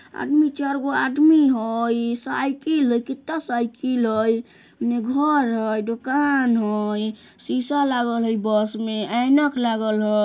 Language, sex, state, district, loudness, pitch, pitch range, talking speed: Bajjika, female, Bihar, Vaishali, -21 LUFS, 240 Hz, 225-275 Hz, 135 wpm